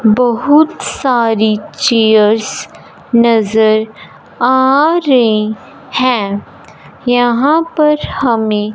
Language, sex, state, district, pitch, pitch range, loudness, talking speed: Hindi, male, Punjab, Fazilka, 235 Hz, 215-265 Hz, -12 LUFS, 70 wpm